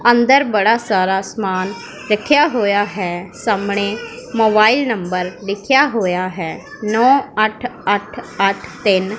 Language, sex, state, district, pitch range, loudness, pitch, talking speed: Punjabi, female, Punjab, Pathankot, 195-235 Hz, -16 LUFS, 210 Hz, 120 wpm